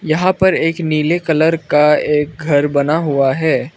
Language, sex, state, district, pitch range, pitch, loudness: Hindi, male, Arunachal Pradesh, Lower Dibang Valley, 150-165 Hz, 155 Hz, -14 LUFS